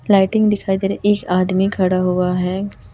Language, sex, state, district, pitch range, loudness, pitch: Hindi, female, Chhattisgarh, Raipur, 185-200 Hz, -17 LUFS, 190 Hz